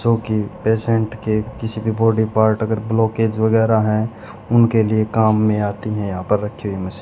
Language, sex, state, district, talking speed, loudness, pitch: Hindi, male, Haryana, Charkhi Dadri, 205 wpm, -18 LUFS, 110 Hz